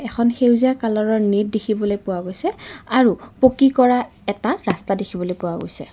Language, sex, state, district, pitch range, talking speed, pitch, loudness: Assamese, female, Assam, Kamrup Metropolitan, 200-250 Hz, 150 wpm, 220 Hz, -19 LUFS